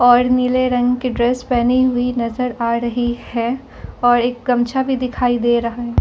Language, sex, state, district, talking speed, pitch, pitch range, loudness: Hindi, female, Delhi, New Delhi, 190 wpm, 245 Hz, 240-250 Hz, -17 LUFS